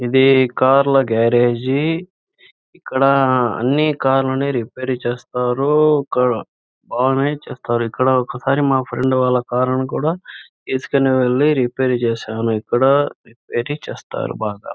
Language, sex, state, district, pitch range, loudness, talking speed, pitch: Telugu, male, Andhra Pradesh, Anantapur, 120-140 Hz, -17 LUFS, 110 wpm, 130 Hz